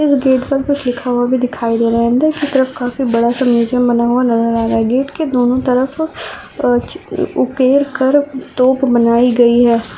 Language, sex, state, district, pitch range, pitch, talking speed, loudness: Hindi, female, Rajasthan, Churu, 240-270 Hz, 250 Hz, 175 wpm, -14 LUFS